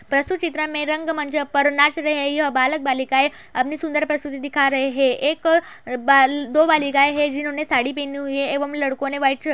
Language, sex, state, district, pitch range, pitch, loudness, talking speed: Hindi, female, Uttar Pradesh, Budaun, 275-300 Hz, 290 Hz, -20 LUFS, 215 wpm